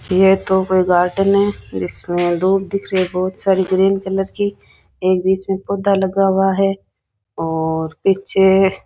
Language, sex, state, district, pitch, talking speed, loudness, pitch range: Rajasthani, female, Rajasthan, Nagaur, 190 Hz, 170 wpm, -17 LUFS, 180-195 Hz